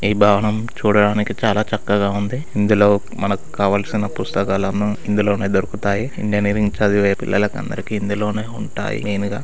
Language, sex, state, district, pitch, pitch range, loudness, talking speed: Telugu, male, Telangana, Karimnagar, 105 Hz, 100-105 Hz, -19 LUFS, 125 wpm